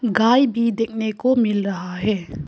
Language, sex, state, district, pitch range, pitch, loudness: Hindi, female, Arunachal Pradesh, Papum Pare, 200-235 Hz, 220 Hz, -20 LUFS